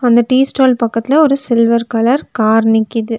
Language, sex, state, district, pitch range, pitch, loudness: Tamil, female, Tamil Nadu, Nilgiris, 225-260 Hz, 235 Hz, -12 LUFS